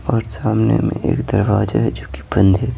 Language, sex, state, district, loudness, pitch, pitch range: Hindi, male, Bihar, Patna, -17 LUFS, 110 Hz, 110-125 Hz